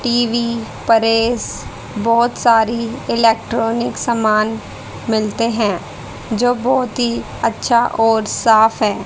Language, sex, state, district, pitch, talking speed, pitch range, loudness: Hindi, female, Haryana, Rohtak, 230 Hz, 100 wpm, 225-235 Hz, -16 LUFS